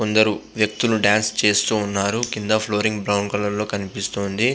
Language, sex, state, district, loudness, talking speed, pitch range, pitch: Telugu, male, Andhra Pradesh, Visakhapatnam, -20 LUFS, 105 wpm, 100-110 Hz, 105 Hz